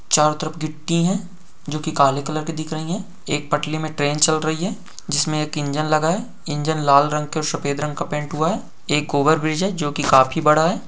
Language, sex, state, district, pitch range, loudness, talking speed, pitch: Hindi, male, Jharkhand, Sahebganj, 150-165 Hz, -20 LUFS, 225 wpm, 155 Hz